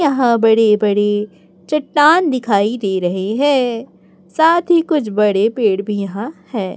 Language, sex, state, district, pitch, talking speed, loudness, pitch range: Hindi, female, Chhattisgarh, Raipur, 225 Hz, 140 wpm, -15 LUFS, 205-285 Hz